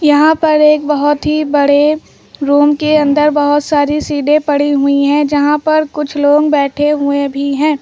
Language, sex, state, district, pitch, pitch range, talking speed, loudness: Hindi, female, Uttar Pradesh, Lucknow, 295 Hz, 285-300 Hz, 175 wpm, -12 LUFS